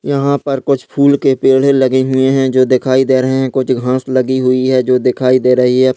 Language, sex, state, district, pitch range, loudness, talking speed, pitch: Hindi, male, Uttarakhand, Uttarkashi, 130-135 Hz, -12 LUFS, 240 wpm, 130 Hz